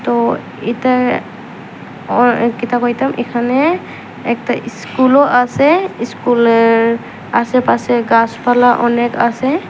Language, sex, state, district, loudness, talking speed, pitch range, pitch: Bengali, female, Tripura, Unakoti, -14 LUFS, 85 wpm, 235-255 Hz, 240 Hz